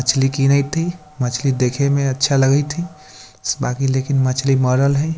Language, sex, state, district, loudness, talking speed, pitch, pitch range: Bajjika, male, Bihar, Vaishali, -18 LUFS, 160 wpm, 135 Hz, 130-145 Hz